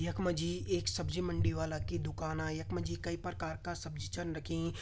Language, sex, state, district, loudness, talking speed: Garhwali, male, Uttarakhand, Uttarkashi, -37 LUFS, 185 wpm